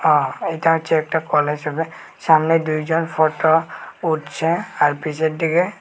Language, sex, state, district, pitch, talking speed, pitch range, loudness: Bengali, male, Tripura, West Tripura, 160 Hz, 135 wpm, 155-165 Hz, -19 LUFS